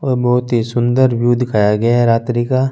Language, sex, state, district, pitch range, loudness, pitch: Hindi, male, Punjab, Fazilka, 120-125 Hz, -15 LUFS, 120 Hz